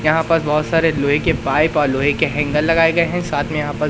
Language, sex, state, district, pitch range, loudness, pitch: Hindi, male, Madhya Pradesh, Katni, 145-165 Hz, -17 LUFS, 150 Hz